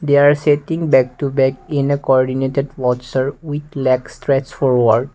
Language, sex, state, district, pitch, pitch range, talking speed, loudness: English, male, Assam, Kamrup Metropolitan, 135 Hz, 130-145 Hz, 150 wpm, -17 LUFS